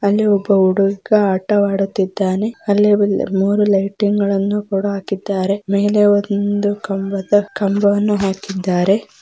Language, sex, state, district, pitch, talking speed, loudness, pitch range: Kannada, female, Karnataka, Belgaum, 200 Hz, 100 wpm, -16 LUFS, 195-205 Hz